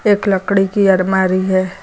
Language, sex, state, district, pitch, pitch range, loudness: Hindi, female, Uttar Pradesh, Lucknow, 190 Hz, 185-200 Hz, -14 LUFS